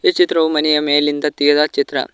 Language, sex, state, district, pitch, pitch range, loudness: Kannada, male, Karnataka, Koppal, 150 Hz, 145-155 Hz, -15 LUFS